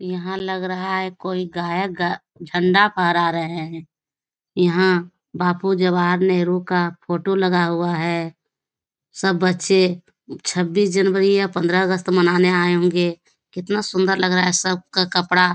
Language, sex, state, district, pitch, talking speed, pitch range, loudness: Hindi, female, Bihar, Lakhisarai, 180 Hz, 145 wpm, 175-185 Hz, -19 LUFS